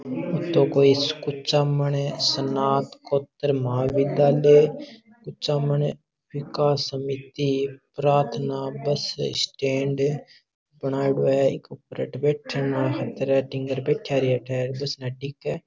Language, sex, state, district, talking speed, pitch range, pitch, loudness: Marwari, male, Rajasthan, Nagaur, 95 wpm, 135-145 Hz, 140 Hz, -23 LUFS